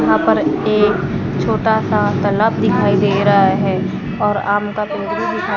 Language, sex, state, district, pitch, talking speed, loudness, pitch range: Hindi, female, Maharashtra, Gondia, 200 Hz, 175 wpm, -16 LUFS, 195-205 Hz